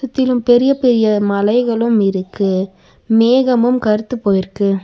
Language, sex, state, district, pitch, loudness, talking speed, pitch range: Tamil, female, Tamil Nadu, Nilgiris, 225 Hz, -14 LUFS, 100 wpm, 200-245 Hz